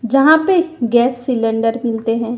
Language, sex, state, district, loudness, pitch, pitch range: Hindi, female, Madhya Pradesh, Umaria, -15 LUFS, 240 Hz, 230-270 Hz